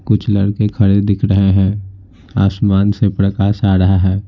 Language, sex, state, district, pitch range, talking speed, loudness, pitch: Hindi, male, Bihar, Patna, 95-105 Hz, 170 wpm, -14 LUFS, 100 Hz